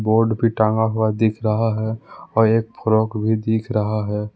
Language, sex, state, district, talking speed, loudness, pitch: Hindi, male, Jharkhand, Palamu, 195 wpm, -20 LUFS, 110 Hz